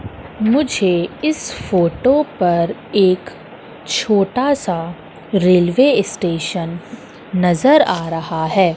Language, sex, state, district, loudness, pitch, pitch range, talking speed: Hindi, female, Madhya Pradesh, Katni, -16 LUFS, 185 Hz, 170-235 Hz, 90 wpm